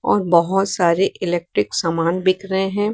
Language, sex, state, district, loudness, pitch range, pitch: Hindi, female, Bihar, West Champaran, -19 LUFS, 170-195 Hz, 185 Hz